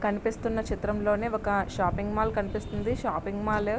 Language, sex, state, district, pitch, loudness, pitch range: Telugu, male, Andhra Pradesh, Srikakulam, 210 Hz, -29 LUFS, 205-220 Hz